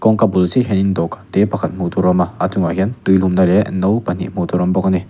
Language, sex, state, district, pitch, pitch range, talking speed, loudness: Mizo, male, Mizoram, Aizawl, 95 Hz, 90-95 Hz, 305 wpm, -16 LUFS